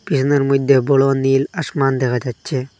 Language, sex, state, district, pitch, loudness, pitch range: Bengali, male, Assam, Hailakandi, 135 Hz, -17 LUFS, 130-140 Hz